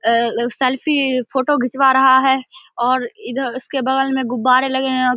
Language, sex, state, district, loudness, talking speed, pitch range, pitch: Hindi, male, Bihar, Samastipur, -17 LUFS, 160 wpm, 250-265 Hz, 260 Hz